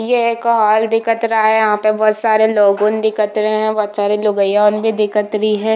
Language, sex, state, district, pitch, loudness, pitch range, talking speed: Hindi, female, Chhattisgarh, Bilaspur, 215 Hz, -14 LUFS, 210-220 Hz, 220 wpm